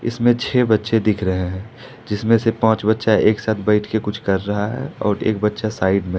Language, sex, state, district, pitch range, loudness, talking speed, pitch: Hindi, male, Jharkhand, Ranchi, 105-115 Hz, -19 LUFS, 225 wpm, 110 Hz